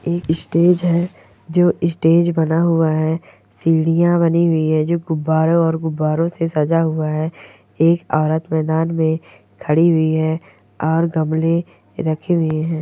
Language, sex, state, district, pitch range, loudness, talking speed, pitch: Hindi, female, Uttar Pradesh, Hamirpur, 160-170 Hz, -17 LUFS, 150 wpm, 160 Hz